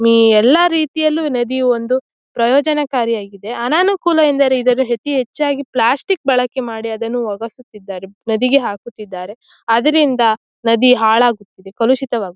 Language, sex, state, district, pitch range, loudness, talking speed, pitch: Kannada, female, Karnataka, Shimoga, 225-280 Hz, -15 LUFS, 110 wpm, 245 Hz